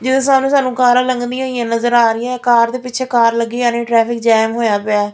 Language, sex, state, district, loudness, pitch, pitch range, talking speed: Punjabi, female, Punjab, Fazilka, -14 LUFS, 240 Hz, 230-255 Hz, 235 wpm